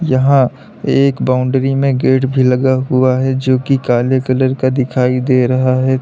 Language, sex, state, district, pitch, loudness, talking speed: Hindi, male, Uttar Pradesh, Lalitpur, 130 Hz, -13 LUFS, 170 wpm